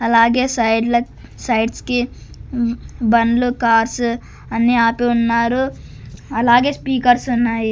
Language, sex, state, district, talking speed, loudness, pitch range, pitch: Telugu, female, Andhra Pradesh, Sri Satya Sai, 100 wpm, -17 LUFS, 230-245 Hz, 235 Hz